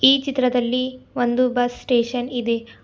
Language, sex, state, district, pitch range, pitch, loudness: Kannada, female, Karnataka, Bidar, 245-255 Hz, 245 Hz, -21 LUFS